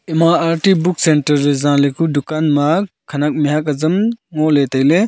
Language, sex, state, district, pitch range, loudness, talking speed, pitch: Wancho, male, Arunachal Pradesh, Longding, 145-170 Hz, -15 LUFS, 155 wpm, 155 Hz